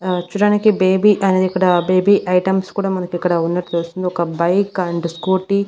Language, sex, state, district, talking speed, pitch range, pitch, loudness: Telugu, female, Andhra Pradesh, Annamaya, 180 wpm, 175-195 Hz, 185 Hz, -17 LUFS